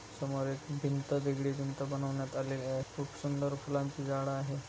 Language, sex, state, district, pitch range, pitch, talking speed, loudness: Marathi, male, Maharashtra, Dhule, 135-140 Hz, 140 Hz, 165 wpm, -36 LUFS